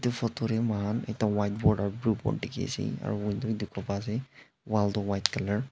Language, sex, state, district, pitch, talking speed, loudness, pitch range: Nagamese, male, Nagaland, Dimapur, 105 Hz, 240 wpm, -30 LUFS, 105-115 Hz